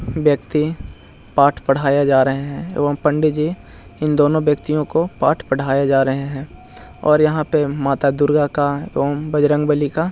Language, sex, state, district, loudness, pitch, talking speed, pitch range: Hindi, male, Bihar, Jahanabad, -18 LUFS, 145 Hz, 180 wpm, 140-150 Hz